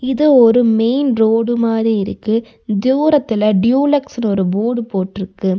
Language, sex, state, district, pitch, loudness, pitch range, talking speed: Tamil, female, Tamil Nadu, Nilgiris, 230 Hz, -15 LUFS, 210-250 Hz, 120 wpm